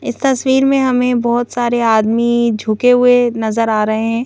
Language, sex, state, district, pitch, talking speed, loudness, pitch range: Hindi, female, Madhya Pradesh, Bhopal, 240 Hz, 185 wpm, -14 LUFS, 225-250 Hz